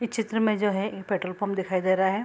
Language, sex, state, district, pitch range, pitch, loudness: Hindi, female, Bihar, Saharsa, 190-215 Hz, 200 Hz, -26 LUFS